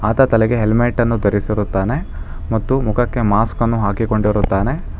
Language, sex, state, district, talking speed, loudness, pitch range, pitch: Kannada, male, Karnataka, Bangalore, 120 wpm, -17 LUFS, 105-115 Hz, 110 Hz